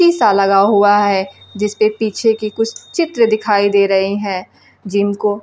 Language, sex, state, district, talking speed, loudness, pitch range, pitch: Hindi, female, Bihar, Kaimur, 145 wpm, -15 LUFS, 200-220 Hz, 205 Hz